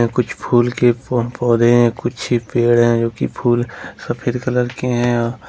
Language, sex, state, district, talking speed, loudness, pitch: Hindi, male, Jharkhand, Ranchi, 165 wpm, -17 LUFS, 120 Hz